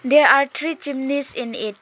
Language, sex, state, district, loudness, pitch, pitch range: English, female, Arunachal Pradesh, Lower Dibang Valley, -19 LUFS, 275 Hz, 250-285 Hz